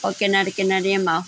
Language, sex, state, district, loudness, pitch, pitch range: Garhwali, female, Uttarakhand, Tehri Garhwal, -20 LUFS, 195 Hz, 190-195 Hz